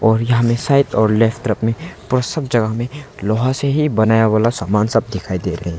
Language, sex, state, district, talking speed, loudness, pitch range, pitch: Hindi, male, Arunachal Pradesh, Longding, 240 wpm, -17 LUFS, 110-125 Hz, 115 Hz